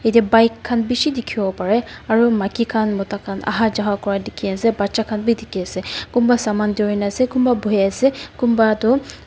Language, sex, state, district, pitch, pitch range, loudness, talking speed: Nagamese, female, Nagaland, Dimapur, 220 Hz, 205-235 Hz, -18 LUFS, 200 wpm